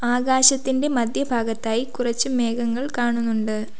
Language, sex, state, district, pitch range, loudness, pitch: Malayalam, female, Kerala, Kollam, 230-260 Hz, -21 LUFS, 240 Hz